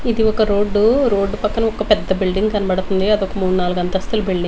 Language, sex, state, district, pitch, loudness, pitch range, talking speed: Telugu, female, Andhra Pradesh, Manyam, 205 Hz, -17 LUFS, 190-215 Hz, 215 wpm